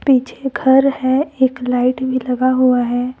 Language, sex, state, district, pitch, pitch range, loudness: Hindi, female, Jharkhand, Deoghar, 255 Hz, 250-265 Hz, -16 LUFS